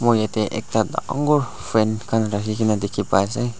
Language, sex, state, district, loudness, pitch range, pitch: Nagamese, male, Nagaland, Dimapur, -21 LUFS, 105-120 Hz, 110 Hz